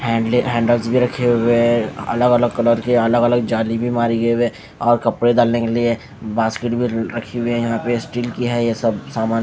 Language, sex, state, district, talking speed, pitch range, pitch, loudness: Hindi, male, Haryana, Charkhi Dadri, 220 wpm, 115-120 Hz, 120 Hz, -18 LUFS